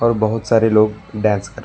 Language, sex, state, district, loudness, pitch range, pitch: Hindi, male, Karnataka, Bangalore, -17 LUFS, 105-115 Hz, 110 Hz